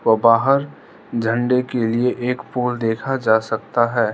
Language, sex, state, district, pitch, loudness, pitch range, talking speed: Hindi, male, Arunachal Pradesh, Lower Dibang Valley, 120 Hz, -19 LUFS, 115-125 Hz, 160 wpm